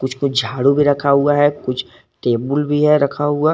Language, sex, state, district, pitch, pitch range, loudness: Hindi, male, Jharkhand, Garhwa, 140 Hz, 135-145 Hz, -16 LUFS